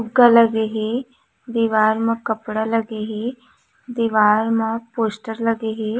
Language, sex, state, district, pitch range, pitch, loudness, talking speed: Chhattisgarhi, female, Chhattisgarh, Raigarh, 220-235 Hz, 225 Hz, -19 LUFS, 130 wpm